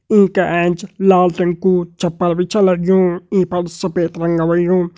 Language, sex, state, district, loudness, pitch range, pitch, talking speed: Hindi, male, Uttarakhand, Tehri Garhwal, -16 LUFS, 175-190 Hz, 180 Hz, 180 wpm